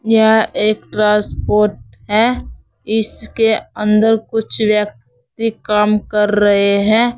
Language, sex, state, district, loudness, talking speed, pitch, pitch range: Hindi, female, Uttar Pradesh, Saharanpur, -15 LUFS, 100 wpm, 215 Hz, 210-220 Hz